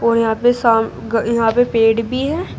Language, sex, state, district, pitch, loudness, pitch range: Hindi, female, Uttar Pradesh, Shamli, 230 Hz, -16 LUFS, 225-245 Hz